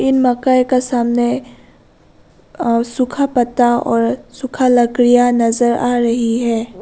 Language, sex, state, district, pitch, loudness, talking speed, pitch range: Hindi, female, Arunachal Pradesh, Lower Dibang Valley, 245 Hz, -15 LUFS, 125 wpm, 235-255 Hz